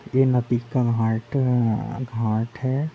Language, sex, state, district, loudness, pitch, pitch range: Hindi, male, Chhattisgarh, Rajnandgaon, -23 LUFS, 125 Hz, 115-130 Hz